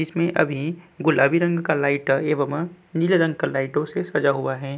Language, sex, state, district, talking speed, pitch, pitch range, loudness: Hindi, male, Uttar Pradesh, Budaun, 190 wpm, 155 Hz, 140-170 Hz, -22 LUFS